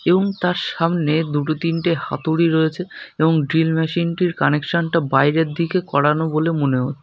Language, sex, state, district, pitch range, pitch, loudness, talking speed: Bengali, male, West Bengal, North 24 Parganas, 150-170 Hz, 160 Hz, -19 LUFS, 160 wpm